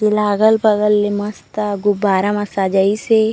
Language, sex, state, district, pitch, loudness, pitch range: Chhattisgarhi, female, Chhattisgarh, Raigarh, 205 Hz, -16 LUFS, 205-215 Hz